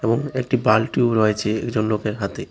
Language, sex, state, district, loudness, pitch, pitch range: Bengali, male, Tripura, West Tripura, -20 LUFS, 110 Hz, 110-120 Hz